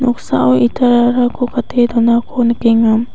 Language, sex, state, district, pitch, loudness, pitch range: Garo, female, Meghalaya, West Garo Hills, 240 Hz, -13 LUFS, 230-245 Hz